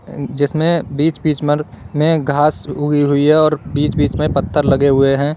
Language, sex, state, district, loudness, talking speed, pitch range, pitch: Hindi, male, Uttar Pradesh, Lalitpur, -15 LUFS, 180 wpm, 140-155 Hz, 145 Hz